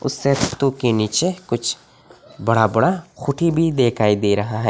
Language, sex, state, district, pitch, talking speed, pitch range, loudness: Hindi, male, Assam, Hailakandi, 125 Hz, 140 wpm, 110-140 Hz, -19 LUFS